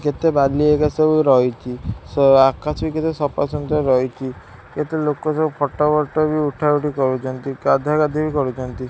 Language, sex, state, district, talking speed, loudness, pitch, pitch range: Odia, male, Odisha, Khordha, 155 wpm, -18 LUFS, 145 Hz, 130-150 Hz